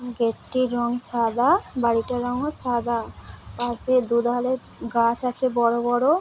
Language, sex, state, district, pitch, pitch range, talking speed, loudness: Bengali, female, West Bengal, Dakshin Dinajpur, 245 Hz, 235-255 Hz, 155 wpm, -23 LUFS